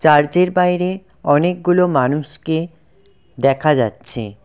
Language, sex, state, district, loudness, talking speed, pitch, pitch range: Bengali, male, West Bengal, Cooch Behar, -17 LUFS, 80 wpm, 160 Hz, 135-180 Hz